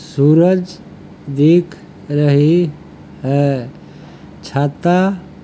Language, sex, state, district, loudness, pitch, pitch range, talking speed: Hindi, male, Uttar Pradesh, Hamirpur, -15 LUFS, 155 Hz, 140-175 Hz, 65 wpm